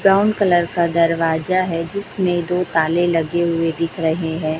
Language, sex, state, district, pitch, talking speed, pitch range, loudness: Hindi, female, Chhattisgarh, Raipur, 170 Hz, 170 wpm, 165-180 Hz, -18 LUFS